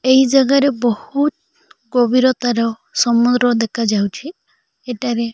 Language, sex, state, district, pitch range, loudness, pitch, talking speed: Odia, male, Odisha, Malkangiri, 230-265 Hz, -16 LUFS, 245 Hz, 100 wpm